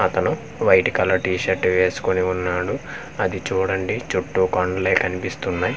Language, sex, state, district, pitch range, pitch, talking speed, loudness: Telugu, male, Andhra Pradesh, Manyam, 90-95 Hz, 95 Hz, 125 wpm, -21 LUFS